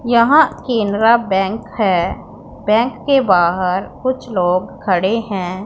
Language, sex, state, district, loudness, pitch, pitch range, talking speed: Hindi, female, Punjab, Pathankot, -16 LUFS, 215 Hz, 185-240 Hz, 115 wpm